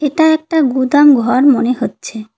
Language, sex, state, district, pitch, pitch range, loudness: Bengali, female, West Bengal, Cooch Behar, 270 Hz, 245-295 Hz, -12 LUFS